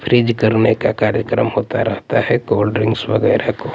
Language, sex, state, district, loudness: Hindi, male, Delhi, New Delhi, -16 LUFS